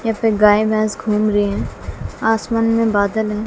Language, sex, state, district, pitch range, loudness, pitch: Hindi, female, Bihar, West Champaran, 205-225 Hz, -17 LUFS, 215 Hz